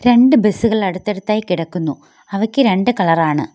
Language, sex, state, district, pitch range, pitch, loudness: Malayalam, female, Kerala, Kollam, 180-230 Hz, 210 Hz, -16 LUFS